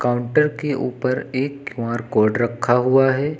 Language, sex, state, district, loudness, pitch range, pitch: Hindi, male, Uttar Pradesh, Lucknow, -20 LUFS, 120-140 Hz, 130 Hz